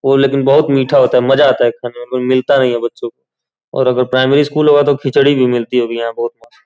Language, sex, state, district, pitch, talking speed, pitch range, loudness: Hindi, male, Uttar Pradesh, Gorakhpur, 130 Hz, 270 wpm, 120-140 Hz, -13 LUFS